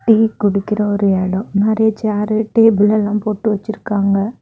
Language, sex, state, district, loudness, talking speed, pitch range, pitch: Tamil, female, Tamil Nadu, Kanyakumari, -16 LUFS, 135 wpm, 205-220 Hz, 210 Hz